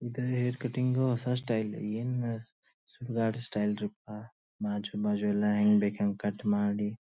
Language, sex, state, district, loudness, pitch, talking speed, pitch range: Kannada, male, Karnataka, Dharwad, -31 LUFS, 105 Hz, 145 wpm, 105-120 Hz